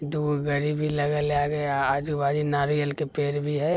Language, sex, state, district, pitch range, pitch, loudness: Maithili, male, Bihar, Begusarai, 145-150 Hz, 145 Hz, -26 LUFS